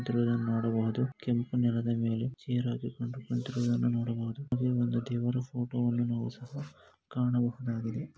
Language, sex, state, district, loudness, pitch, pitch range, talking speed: Kannada, male, Karnataka, Gulbarga, -32 LUFS, 120 Hz, 120-125 Hz, 130 wpm